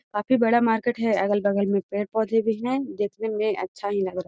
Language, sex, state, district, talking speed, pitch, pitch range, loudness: Magahi, female, Bihar, Gaya, 240 wpm, 215 Hz, 200-225 Hz, -24 LUFS